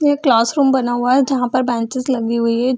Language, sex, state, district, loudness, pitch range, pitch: Hindi, female, Bihar, Gaya, -16 LUFS, 240-265 Hz, 255 Hz